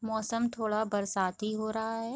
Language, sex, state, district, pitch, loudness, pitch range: Hindi, female, Bihar, Gopalganj, 220 Hz, -32 LUFS, 215-225 Hz